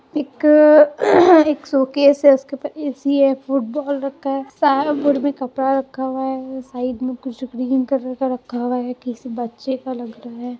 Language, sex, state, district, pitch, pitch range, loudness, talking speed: Hindi, female, Bihar, Muzaffarpur, 265 Hz, 255-285 Hz, -17 LUFS, 180 wpm